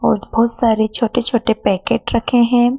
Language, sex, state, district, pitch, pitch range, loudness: Hindi, female, Madhya Pradesh, Dhar, 235 Hz, 225-240 Hz, -16 LUFS